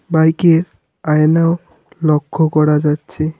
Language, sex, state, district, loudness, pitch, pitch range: Bengali, male, West Bengal, Alipurduar, -14 LUFS, 160 Hz, 155-165 Hz